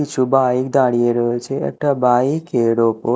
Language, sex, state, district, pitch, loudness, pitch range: Bengali, male, Odisha, Malkangiri, 125 Hz, -17 LUFS, 120-135 Hz